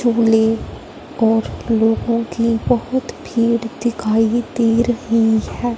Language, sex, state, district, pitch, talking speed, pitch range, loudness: Hindi, female, Punjab, Fazilka, 230 Hz, 95 wpm, 225-235 Hz, -17 LUFS